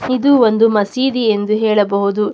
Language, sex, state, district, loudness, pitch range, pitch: Kannada, female, Karnataka, Mysore, -14 LUFS, 210-250 Hz, 215 Hz